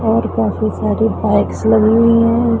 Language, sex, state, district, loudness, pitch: Hindi, male, Punjab, Pathankot, -14 LUFS, 110 Hz